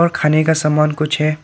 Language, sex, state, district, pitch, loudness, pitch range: Hindi, male, Tripura, Dhalai, 155 Hz, -15 LUFS, 150-155 Hz